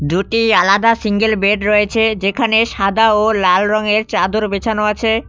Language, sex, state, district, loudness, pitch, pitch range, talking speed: Bengali, male, West Bengal, Cooch Behar, -14 LUFS, 215 Hz, 205-225 Hz, 145 wpm